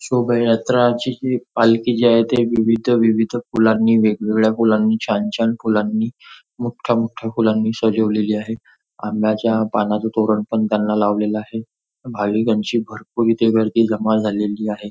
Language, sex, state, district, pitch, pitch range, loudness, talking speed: Marathi, male, Maharashtra, Nagpur, 110 Hz, 105-115 Hz, -18 LUFS, 135 wpm